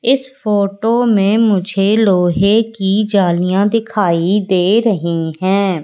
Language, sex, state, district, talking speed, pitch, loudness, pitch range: Hindi, female, Madhya Pradesh, Katni, 115 wpm, 200 Hz, -14 LUFS, 185-220 Hz